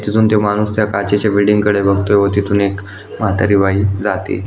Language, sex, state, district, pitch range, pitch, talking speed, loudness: Marathi, male, Maharashtra, Aurangabad, 100-105 Hz, 100 Hz, 190 wpm, -14 LUFS